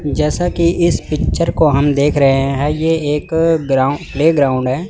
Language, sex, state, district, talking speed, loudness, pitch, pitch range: Hindi, male, Chandigarh, Chandigarh, 170 wpm, -15 LUFS, 150 Hz, 140-165 Hz